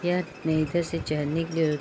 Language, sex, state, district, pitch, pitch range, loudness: Hindi, female, Bihar, Sitamarhi, 165 Hz, 155-170 Hz, -27 LUFS